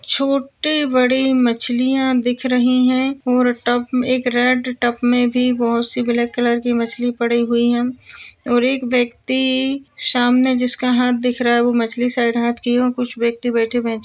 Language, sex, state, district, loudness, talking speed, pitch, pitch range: Hindi, female, Maharashtra, Sindhudurg, -17 LUFS, 170 wpm, 245 Hz, 240-255 Hz